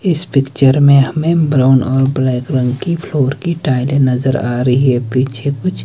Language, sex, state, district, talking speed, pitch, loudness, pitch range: Hindi, male, Himachal Pradesh, Shimla, 185 wpm, 135 Hz, -13 LUFS, 130-150 Hz